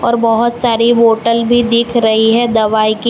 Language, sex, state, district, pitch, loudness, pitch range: Hindi, female, Gujarat, Valsad, 230 Hz, -12 LUFS, 225-235 Hz